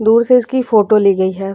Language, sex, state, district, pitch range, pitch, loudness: Hindi, female, Uttar Pradesh, Jyotiba Phule Nagar, 195-240 Hz, 215 Hz, -13 LUFS